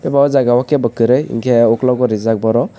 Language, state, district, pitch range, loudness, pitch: Kokborok, Tripura, West Tripura, 115-135 Hz, -14 LUFS, 125 Hz